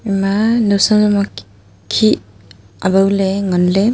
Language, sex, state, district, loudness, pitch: Wancho, female, Arunachal Pradesh, Longding, -15 LUFS, 195 Hz